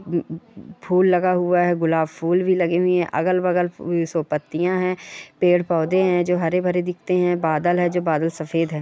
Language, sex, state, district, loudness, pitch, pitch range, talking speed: Hindi, female, West Bengal, Purulia, -20 LUFS, 175 Hz, 165-180 Hz, 205 wpm